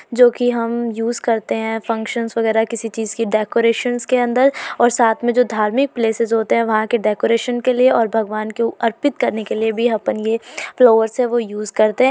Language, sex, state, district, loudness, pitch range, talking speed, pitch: Hindi, female, Uttar Pradesh, Varanasi, -17 LUFS, 225-245 Hz, 215 wpm, 230 Hz